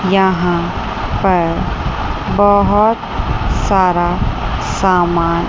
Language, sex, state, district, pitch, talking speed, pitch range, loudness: Hindi, female, Chandigarh, Chandigarh, 180 Hz, 55 wpm, 170-195 Hz, -15 LUFS